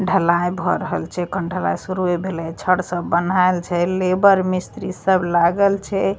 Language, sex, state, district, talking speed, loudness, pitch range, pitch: Maithili, female, Bihar, Begusarai, 195 wpm, -19 LUFS, 175-190 Hz, 185 Hz